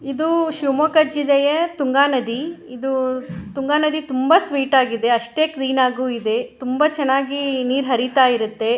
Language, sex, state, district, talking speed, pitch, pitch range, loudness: Kannada, female, Karnataka, Shimoga, 135 wpm, 270 Hz, 255-300 Hz, -19 LUFS